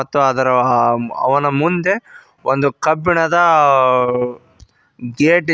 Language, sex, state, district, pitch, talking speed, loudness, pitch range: Kannada, male, Karnataka, Koppal, 140 Hz, 95 wpm, -15 LUFS, 125-165 Hz